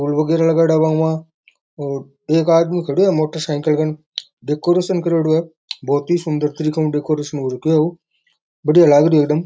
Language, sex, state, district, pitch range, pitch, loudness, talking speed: Rajasthani, male, Rajasthan, Nagaur, 150-165 Hz, 155 Hz, -17 LUFS, 180 wpm